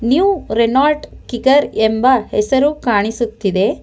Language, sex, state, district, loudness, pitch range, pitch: Kannada, female, Karnataka, Bangalore, -15 LUFS, 220-280 Hz, 240 Hz